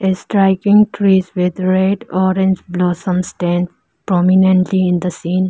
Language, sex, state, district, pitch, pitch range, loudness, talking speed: English, female, Arunachal Pradesh, Lower Dibang Valley, 185 Hz, 180-190 Hz, -15 LUFS, 120 wpm